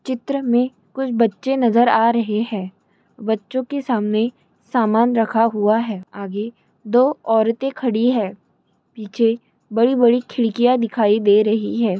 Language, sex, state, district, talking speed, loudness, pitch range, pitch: Hindi, female, Chhattisgarh, Bilaspur, 135 wpm, -19 LUFS, 215-245 Hz, 230 Hz